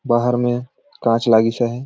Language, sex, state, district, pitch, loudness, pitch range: Sadri, male, Chhattisgarh, Jashpur, 120 Hz, -18 LUFS, 115-125 Hz